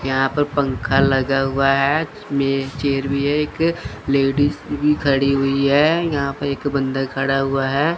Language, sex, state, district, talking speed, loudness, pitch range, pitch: Hindi, male, Chandigarh, Chandigarh, 175 wpm, -19 LUFS, 135-145 Hz, 140 Hz